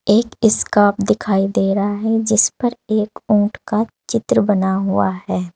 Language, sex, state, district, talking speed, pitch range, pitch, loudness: Hindi, female, Uttar Pradesh, Saharanpur, 160 wpm, 195-220 Hz, 210 Hz, -17 LUFS